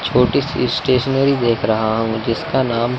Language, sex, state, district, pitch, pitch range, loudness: Hindi, male, Chandigarh, Chandigarh, 120 Hz, 115-130 Hz, -17 LUFS